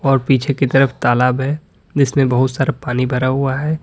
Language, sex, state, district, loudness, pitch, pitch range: Hindi, male, Uttar Pradesh, Lalitpur, -16 LUFS, 135 Hz, 130-140 Hz